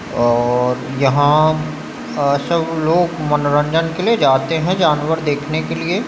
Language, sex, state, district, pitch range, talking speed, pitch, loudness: Chhattisgarhi, male, Chhattisgarh, Bilaspur, 140-165 Hz, 140 wpm, 150 Hz, -16 LUFS